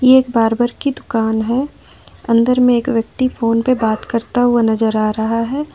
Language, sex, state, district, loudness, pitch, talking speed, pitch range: Hindi, female, Jharkhand, Ranchi, -16 LUFS, 235 Hz, 190 wpm, 225-255 Hz